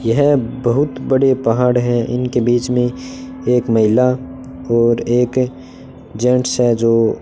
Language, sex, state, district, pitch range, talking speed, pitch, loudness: Hindi, male, Rajasthan, Bikaner, 120-130 Hz, 135 wpm, 125 Hz, -16 LUFS